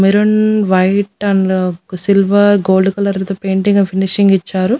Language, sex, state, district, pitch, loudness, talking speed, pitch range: Telugu, female, Andhra Pradesh, Annamaya, 195 Hz, -13 LUFS, 125 wpm, 190-205 Hz